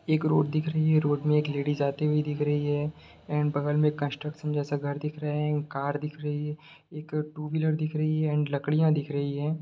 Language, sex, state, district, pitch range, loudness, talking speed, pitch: Hindi, male, Bihar, Sitamarhi, 145-155 Hz, -28 LUFS, 205 wpm, 150 Hz